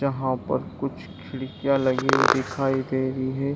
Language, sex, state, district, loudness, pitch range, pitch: Hindi, male, Bihar, Saran, -24 LUFS, 130-135 Hz, 130 Hz